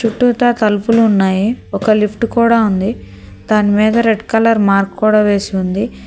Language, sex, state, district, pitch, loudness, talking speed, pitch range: Telugu, female, Telangana, Hyderabad, 215 Hz, -13 LUFS, 140 wpm, 195-225 Hz